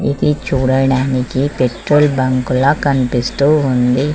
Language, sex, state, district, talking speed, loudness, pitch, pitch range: Telugu, female, Telangana, Mahabubabad, 100 wpm, -14 LUFS, 130 Hz, 125-140 Hz